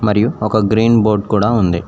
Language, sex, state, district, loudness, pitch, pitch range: Telugu, male, Telangana, Mahabubabad, -14 LUFS, 105 Hz, 105-110 Hz